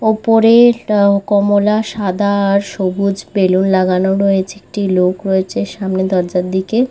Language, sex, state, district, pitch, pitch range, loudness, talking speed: Bengali, female, West Bengal, Malda, 200 Hz, 190-210 Hz, -14 LUFS, 130 wpm